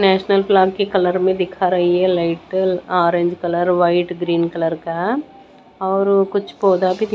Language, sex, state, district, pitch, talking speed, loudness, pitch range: Hindi, female, Maharashtra, Mumbai Suburban, 185 Hz, 170 wpm, -17 LUFS, 175-195 Hz